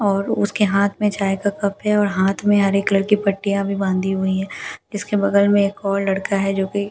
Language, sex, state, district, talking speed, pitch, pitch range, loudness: Hindi, female, Delhi, New Delhi, 245 wpm, 200 Hz, 195-205 Hz, -19 LUFS